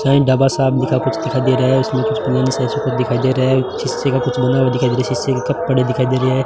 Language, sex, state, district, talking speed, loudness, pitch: Hindi, male, Rajasthan, Bikaner, 110 wpm, -16 LUFS, 130 Hz